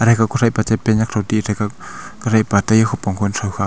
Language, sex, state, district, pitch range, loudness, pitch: Wancho, male, Arunachal Pradesh, Longding, 105-110 Hz, -17 LUFS, 110 Hz